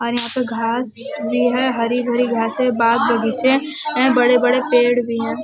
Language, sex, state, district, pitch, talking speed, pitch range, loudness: Hindi, female, Uttar Pradesh, Varanasi, 245 Hz, 175 wpm, 235-255 Hz, -17 LUFS